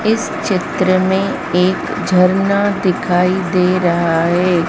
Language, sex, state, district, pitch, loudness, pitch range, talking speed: Hindi, female, Madhya Pradesh, Dhar, 185 Hz, -15 LUFS, 180-195 Hz, 115 wpm